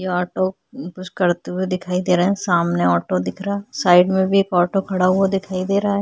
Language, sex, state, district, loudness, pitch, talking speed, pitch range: Hindi, female, Chhattisgarh, Korba, -19 LUFS, 185 Hz, 260 wpm, 180-195 Hz